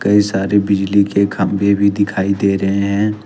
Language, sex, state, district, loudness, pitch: Hindi, male, Jharkhand, Ranchi, -15 LUFS, 100 Hz